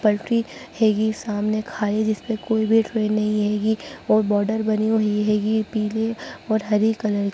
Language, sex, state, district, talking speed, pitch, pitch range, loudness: Hindi, female, Bihar, Sitamarhi, 165 wpm, 215 Hz, 210-220 Hz, -22 LUFS